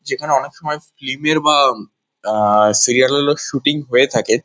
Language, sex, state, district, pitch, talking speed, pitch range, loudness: Bengali, male, West Bengal, Kolkata, 145 Hz, 160 wpm, 125-150 Hz, -15 LUFS